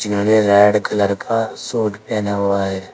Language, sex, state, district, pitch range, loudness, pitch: Hindi, male, Uttar Pradesh, Saharanpur, 100-110 Hz, -17 LUFS, 105 Hz